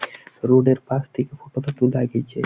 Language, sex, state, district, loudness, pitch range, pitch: Bengali, male, West Bengal, Malda, -21 LUFS, 125-140 Hz, 130 Hz